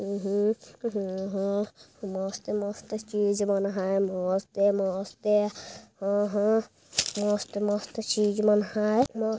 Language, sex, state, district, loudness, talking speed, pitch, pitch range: Hindi, female, Chhattisgarh, Jashpur, -28 LUFS, 85 wpm, 205 Hz, 195-210 Hz